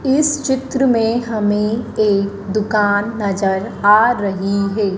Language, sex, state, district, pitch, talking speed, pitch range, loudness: Hindi, female, Madhya Pradesh, Dhar, 210 Hz, 120 wpm, 200-235 Hz, -16 LUFS